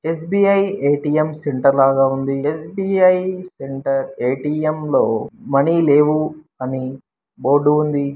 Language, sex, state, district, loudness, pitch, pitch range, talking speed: Telugu, male, Andhra Pradesh, Srikakulam, -18 LUFS, 150 Hz, 135-160 Hz, 155 wpm